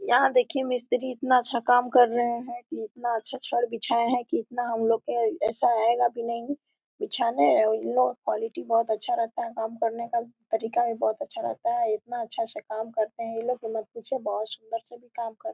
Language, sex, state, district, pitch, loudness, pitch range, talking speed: Hindi, female, Jharkhand, Sahebganj, 235 Hz, -27 LUFS, 225-250 Hz, 230 wpm